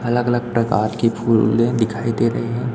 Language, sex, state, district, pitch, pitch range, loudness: Hindi, male, Chhattisgarh, Raipur, 115 Hz, 115-120 Hz, -19 LUFS